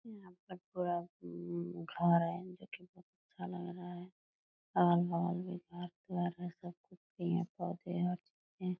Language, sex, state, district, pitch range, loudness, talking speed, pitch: Hindi, female, Bihar, Purnia, 175-180 Hz, -38 LUFS, 135 wpm, 175 Hz